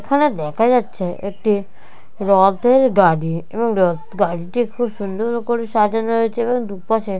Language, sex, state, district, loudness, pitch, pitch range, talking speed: Bengali, female, West Bengal, Jalpaiguri, -18 LUFS, 215 Hz, 195-235 Hz, 140 wpm